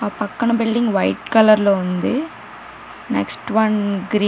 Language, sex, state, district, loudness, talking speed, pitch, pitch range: Telugu, female, Telangana, Karimnagar, -18 LUFS, 155 wpm, 210 Hz, 200-230 Hz